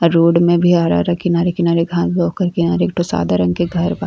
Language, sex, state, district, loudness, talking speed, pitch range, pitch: Bhojpuri, female, Uttar Pradesh, Ghazipur, -15 LUFS, 235 wpm, 165-175 Hz, 170 Hz